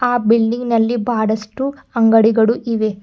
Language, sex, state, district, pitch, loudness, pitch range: Kannada, female, Karnataka, Bidar, 230 Hz, -16 LUFS, 220-240 Hz